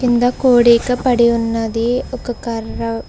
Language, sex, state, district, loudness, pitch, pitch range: Telugu, female, Telangana, Hyderabad, -16 LUFS, 235 Hz, 230-245 Hz